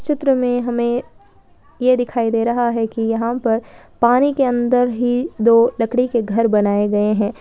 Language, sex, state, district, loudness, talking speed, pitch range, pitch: Hindi, female, Chhattisgarh, Balrampur, -17 LUFS, 180 wpm, 225-250 Hz, 235 Hz